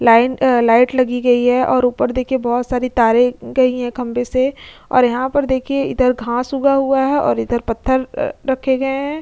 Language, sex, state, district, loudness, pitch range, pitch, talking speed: Hindi, female, Uttar Pradesh, Jyotiba Phule Nagar, -16 LUFS, 245-265 Hz, 255 Hz, 215 wpm